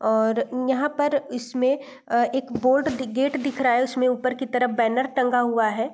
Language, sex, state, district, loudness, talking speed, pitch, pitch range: Hindi, female, Bihar, East Champaran, -23 LUFS, 190 wpm, 255 Hz, 245-270 Hz